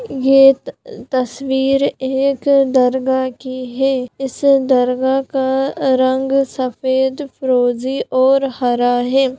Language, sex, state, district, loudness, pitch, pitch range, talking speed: Hindi, female, Bihar, Gopalganj, -16 LUFS, 265 Hz, 255-270 Hz, 95 wpm